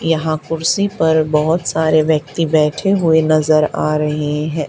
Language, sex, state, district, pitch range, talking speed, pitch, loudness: Hindi, male, Haryana, Charkhi Dadri, 150-165 Hz, 155 wpm, 155 Hz, -15 LUFS